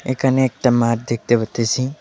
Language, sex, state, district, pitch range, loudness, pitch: Bengali, male, West Bengal, Alipurduar, 115-130 Hz, -18 LUFS, 120 Hz